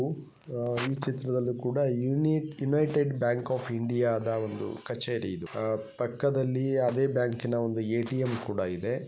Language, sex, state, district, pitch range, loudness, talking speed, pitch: Kannada, male, Karnataka, Gulbarga, 115-135 Hz, -30 LUFS, 120 wpm, 125 Hz